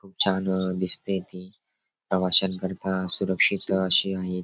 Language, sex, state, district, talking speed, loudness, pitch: Marathi, male, Maharashtra, Dhule, 110 wpm, -21 LUFS, 95 Hz